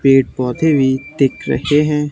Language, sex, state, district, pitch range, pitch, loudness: Hindi, male, Haryana, Charkhi Dadri, 130-150 Hz, 135 Hz, -15 LUFS